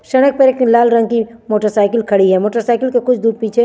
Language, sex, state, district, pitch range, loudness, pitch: Hindi, female, Chandigarh, Chandigarh, 215-245 Hz, -13 LUFS, 230 Hz